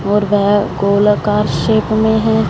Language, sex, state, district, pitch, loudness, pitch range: Hindi, female, Punjab, Fazilka, 210 Hz, -14 LUFS, 200-215 Hz